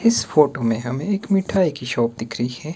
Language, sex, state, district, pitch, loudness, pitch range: Hindi, male, Himachal Pradesh, Shimla, 145 Hz, -21 LUFS, 120-190 Hz